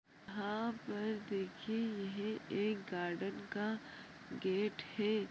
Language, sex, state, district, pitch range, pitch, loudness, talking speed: Hindi, female, Chhattisgarh, Rajnandgaon, 195-215 Hz, 205 Hz, -40 LUFS, 100 wpm